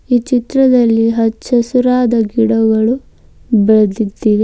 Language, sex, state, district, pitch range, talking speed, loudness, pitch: Kannada, female, Karnataka, Bidar, 220-245 Hz, 70 wpm, -13 LUFS, 230 Hz